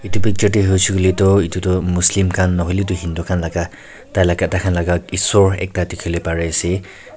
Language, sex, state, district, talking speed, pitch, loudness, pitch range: Nagamese, male, Nagaland, Kohima, 210 wpm, 90 Hz, -17 LUFS, 85-95 Hz